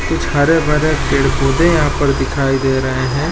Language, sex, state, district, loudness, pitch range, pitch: Hindi, male, Chhattisgarh, Korba, -15 LUFS, 135-155 Hz, 140 Hz